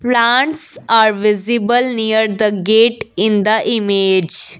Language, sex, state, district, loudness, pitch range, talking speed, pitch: English, female, Assam, Kamrup Metropolitan, -14 LUFS, 210-235 Hz, 115 wpm, 220 Hz